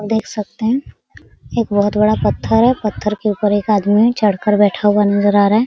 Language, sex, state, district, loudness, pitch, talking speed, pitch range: Hindi, female, Bihar, Araria, -15 LUFS, 210 Hz, 220 wpm, 205-220 Hz